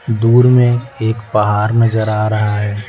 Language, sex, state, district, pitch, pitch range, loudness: Hindi, male, Bihar, Patna, 110 Hz, 105-115 Hz, -13 LUFS